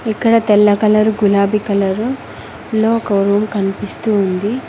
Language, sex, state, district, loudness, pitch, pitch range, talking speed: Telugu, female, Telangana, Mahabubabad, -15 LUFS, 210 Hz, 200-220 Hz, 130 wpm